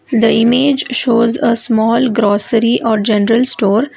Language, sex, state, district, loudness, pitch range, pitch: English, female, Karnataka, Bangalore, -12 LUFS, 220-245 Hz, 230 Hz